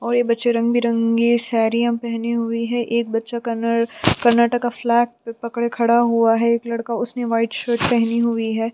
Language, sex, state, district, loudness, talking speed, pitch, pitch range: Hindi, female, Chhattisgarh, Sukma, -19 LUFS, 170 wpm, 235 Hz, 230-235 Hz